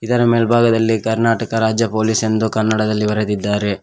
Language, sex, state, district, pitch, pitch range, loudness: Kannada, male, Karnataka, Koppal, 110 Hz, 110-115 Hz, -16 LUFS